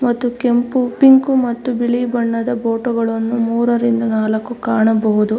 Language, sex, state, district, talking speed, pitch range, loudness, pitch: Kannada, female, Karnataka, Mysore, 135 wpm, 225-245 Hz, -16 LUFS, 235 Hz